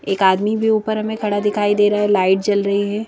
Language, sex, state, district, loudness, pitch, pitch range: Hindi, female, Madhya Pradesh, Bhopal, -17 LUFS, 205 Hz, 200-215 Hz